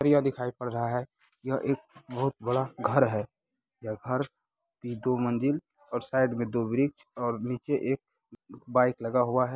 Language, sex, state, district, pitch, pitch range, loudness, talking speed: Hindi, male, Bihar, Muzaffarpur, 125 Hz, 120-140 Hz, -30 LUFS, 170 wpm